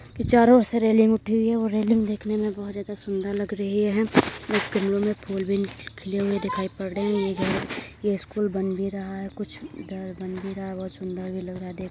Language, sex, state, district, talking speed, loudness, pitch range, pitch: Hindi, female, Uttar Pradesh, Gorakhpur, 250 wpm, -25 LUFS, 190-210 Hz, 200 Hz